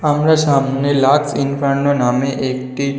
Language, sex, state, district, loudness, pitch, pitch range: Bengali, male, West Bengal, North 24 Parganas, -16 LUFS, 140 Hz, 135-145 Hz